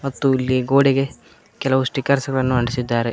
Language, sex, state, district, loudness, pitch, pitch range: Kannada, male, Karnataka, Koppal, -19 LUFS, 130 Hz, 130-135 Hz